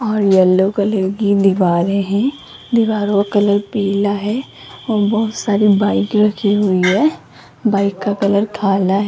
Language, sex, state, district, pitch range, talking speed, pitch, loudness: Hindi, female, Rajasthan, Jaipur, 195-210 Hz, 145 wpm, 205 Hz, -15 LUFS